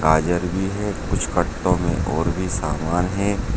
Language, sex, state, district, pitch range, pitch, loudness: Hindi, male, Uttar Pradesh, Saharanpur, 80-95 Hz, 90 Hz, -22 LUFS